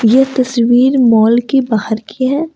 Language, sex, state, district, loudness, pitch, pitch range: Hindi, female, Jharkhand, Ranchi, -12 LUFS, 245 Hz, 225-265 Hz